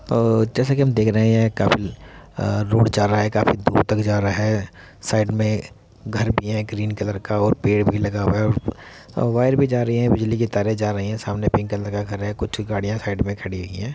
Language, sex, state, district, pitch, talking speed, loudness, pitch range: Hindi, male, Uttar Pradesh, Muzaffarnagar, 105 Hz, 250 wpm, -21 LUFS, 105-110 Hz